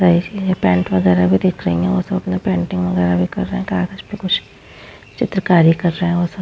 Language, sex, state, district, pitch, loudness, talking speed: Hindi, female, Bihar, Vaishali, 170 Hz, -17 LUFS, 250 wpm